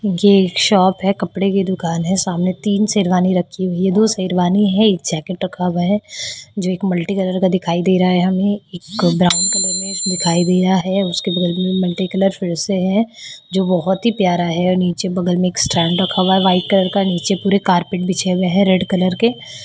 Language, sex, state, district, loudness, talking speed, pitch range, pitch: Hindi, female, Odisha, Khordha, -16 LUFS, 225 wpm, 180-195 Hz, 185 Hz